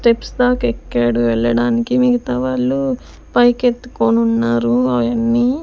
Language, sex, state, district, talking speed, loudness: Telugu, female, Andhra Pradesh, Sri Satya Sai, 105 wpm, -16 LUFS